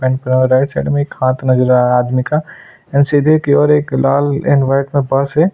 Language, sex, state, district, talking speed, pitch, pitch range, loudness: Hindi, male, Chhattisgarh, Sukma, 250 wpm, 140 Hz, 130-145 Hz, -13 LUFS